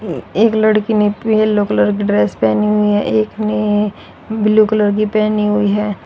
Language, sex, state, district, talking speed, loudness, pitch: Hindi, female, Haryana, Rohtak, 180 wpm, -14 LUFS, 210 Hz